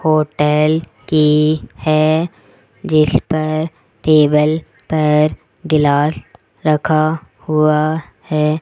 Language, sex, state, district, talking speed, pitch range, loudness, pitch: Hindi, female, Rajasthan, Jaipur, 70 wpm, 150-155 Hz, -15 LUFS, 155 Hz